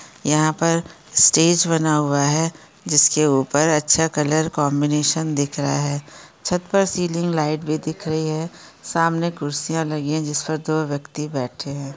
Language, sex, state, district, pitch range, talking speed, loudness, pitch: Hindi, female, Bihar, Darbhanga, 145-160 Hz, 160 wpm, -20 LUFS, 155 Hz